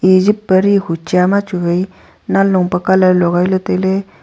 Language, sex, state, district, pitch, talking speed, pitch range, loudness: Wancho, female, Arunachal Pradesh, Longding, 185 Hz, 210 wpm, 180-195 Hz, -14 LUFS